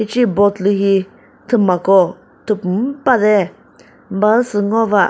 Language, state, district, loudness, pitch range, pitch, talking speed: Chakhesang, Nagaland, Dimapur, -15 LUFS, 195-225 Hz, 205 Hz, 130 wpm